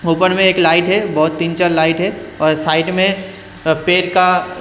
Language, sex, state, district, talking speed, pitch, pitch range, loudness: Hindi, male, Haryana, Rohtak, 195 wpm, 180 Hz, 160-185 Hz, -14 LUFS